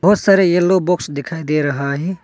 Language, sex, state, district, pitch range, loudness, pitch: Hindi, male, Arunachal Pradesh, Longding, 145-185 Hz, -16 LUFS, 175 Hz